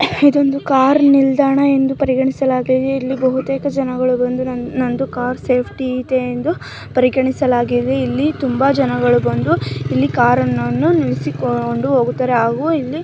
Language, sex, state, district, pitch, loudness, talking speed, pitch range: Kannada, female, Karnataka, Mysore, 255 Hz, -16 LUFS, 125 wpm, 245-270 Hz